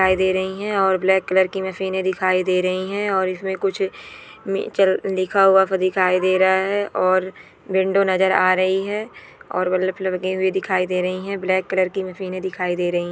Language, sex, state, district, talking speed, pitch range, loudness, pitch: Hindi, female, West Bengal, Purulia, 200 wpm, 185-190 Hz, -20 LUFS, 190 Hz